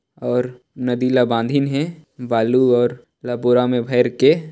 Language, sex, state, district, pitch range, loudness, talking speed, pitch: Chhattisgarhi, male, Chhattisgarh, Sarguja, 120-130 Hz, -18 LUFS, 145 wpm, 125 Hz